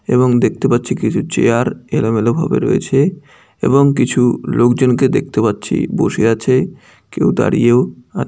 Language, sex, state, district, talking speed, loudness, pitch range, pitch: Bengali, male, West Bengal, Malda, 140 wpm, -14 LUFS, 120-140 Hz, 125 Hz